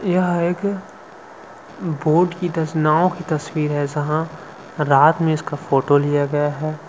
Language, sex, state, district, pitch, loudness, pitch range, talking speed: Hindi, male, Chhattisgarh, Sukma, 155 Hz, -19 LUFS, 150-175 Hz, 140 wpm